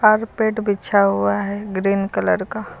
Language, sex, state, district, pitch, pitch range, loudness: Hindi, female, Uttar Pradesh, Lucknow, 200 Hz, 195-215 Hz, -19 LUFS